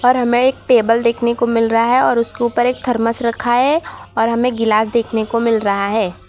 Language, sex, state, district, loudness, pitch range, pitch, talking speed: Hindi, female, Gujarat, Valsad, -16 LUFS, 225-245 Hz, 235 Hz, 220 wpm